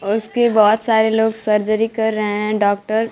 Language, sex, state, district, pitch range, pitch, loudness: Hindi, female, Bihar, Kaimur, 210-225 Hz, 220 Hz, -17 LUFS